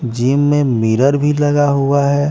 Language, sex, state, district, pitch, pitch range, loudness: Hindi, female, Bihar, West Champaran, 140 Hz, 130-145 Hz, -14 LUFS